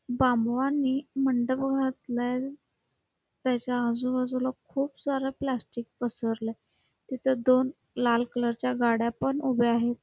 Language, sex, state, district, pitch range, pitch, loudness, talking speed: Marathi, female, Karnataka, Belgaum, 240-265 Hz, 255 Hz, -28 LUFS, 110 wpm